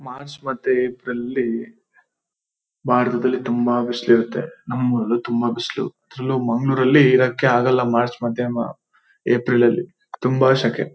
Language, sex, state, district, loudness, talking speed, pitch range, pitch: Kannada, male, Karnataka, Shimoga, -20 LUFS, 115 wpm, 120-130 Hz, 125 Hz